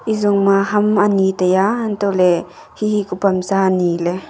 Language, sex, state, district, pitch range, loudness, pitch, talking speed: Wancho, female, Arunachal Pradesh, Longding, 185-205 Hz, -16 LUFS, 195 Hz, 140 wpm